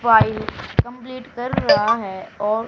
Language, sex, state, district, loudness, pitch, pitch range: Hindi, female, Haryana, Charkhi Dadri, -20 LUFS, 240 Hz, 220-255 Hz